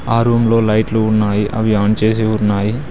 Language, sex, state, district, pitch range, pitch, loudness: Telugu, male, Telangana, Mahabubabad, 105-115 Hz, 110 Hz, -15 LUFS